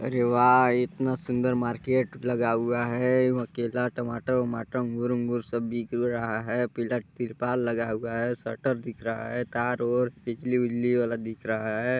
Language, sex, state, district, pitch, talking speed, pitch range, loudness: Hindi, male, Chhattisgarh, Balrampur, 120 Hz, 175 wpm, 115-125 Hz, -27 LUFS